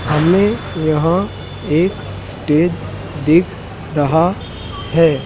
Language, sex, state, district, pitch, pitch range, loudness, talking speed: Hindi, male, Madhya Pradesh, Dhar, 155 Hz, 140-170 Hz, -16 LUFS, 80 wpm